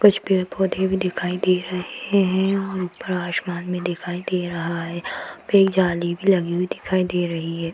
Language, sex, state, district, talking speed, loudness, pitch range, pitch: Hindi, female, Bihar, Madhepura, 200 wpm, -22 LUFS, 175-190 Hz, 180 Hz